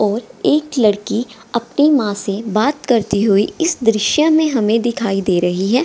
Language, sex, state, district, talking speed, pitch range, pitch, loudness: Hindi, female, Bihar, Gaya, 175 wpm, 205-275 Hz, 225 Hz, -16 LUFS